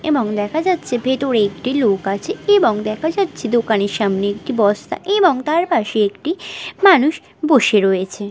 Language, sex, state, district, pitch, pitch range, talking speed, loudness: Bengali, female, West Bengal, Kolkata, 245 Hz, 205-320 Hz, 160 wpm, -17 LUFS